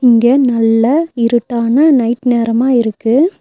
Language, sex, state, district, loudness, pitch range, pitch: Tamil, female, Tamil Nadu, Nilgiris, -12 LUFS, 230-265 Hz, 240 Hz